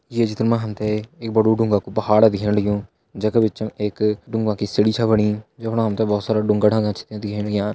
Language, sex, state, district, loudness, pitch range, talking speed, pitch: Hindi, male, Uttarakhand, Tehri Garhwal, -20 LUFS, 105-110 Hz, 240 wpm, 105 Hz